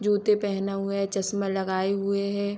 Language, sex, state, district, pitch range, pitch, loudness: Hindi, female, Jharkhand, Sahebganj, 195-200 Hz, 200 Hz, -26 LUFS